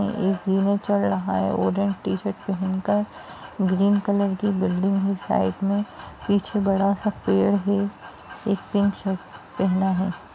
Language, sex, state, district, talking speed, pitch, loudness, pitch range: Hindi, female, Bihar, Jamui, 150 wpm, 195 Hz, -23 LUFS, 185-200 Hz